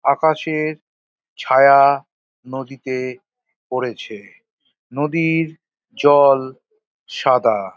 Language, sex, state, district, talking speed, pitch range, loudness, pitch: Bengali, male, West Bengal, Dakshin Dinajpur, 55 wpm, 130-155 Hz, -17 LUFS, 140 Hz